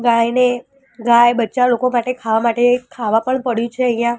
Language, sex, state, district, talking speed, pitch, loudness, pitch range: Gujarati, female, Gujarat, Gandhinagar, 170 wpm, 240 Hz, -16 LUFS, 235-250 Hz